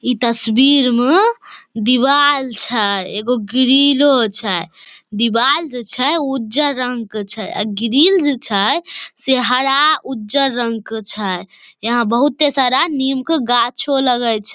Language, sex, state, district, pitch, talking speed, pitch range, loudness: Maithili, female, Bihar, Samastipur, 250 Hz, 135 wpm, 225-280 Hz, -15 LUFS